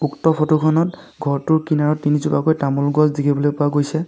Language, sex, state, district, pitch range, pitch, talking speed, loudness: Assamese, male, Assam, Sonitpur, 145-155 Hz, 150 Hz, 145 wpm, -18 LUFS